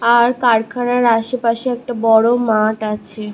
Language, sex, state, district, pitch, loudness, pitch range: Bengali, female, West Bengal, Malda, 235 Hz, -16 LUFS, 220-245 Hz